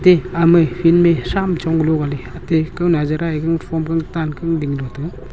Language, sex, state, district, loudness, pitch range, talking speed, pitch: Wancho, male, Arunachal Pradesh, Longding, -17 LUFS, 155-170 Hz, 180 wpm, 165 Hz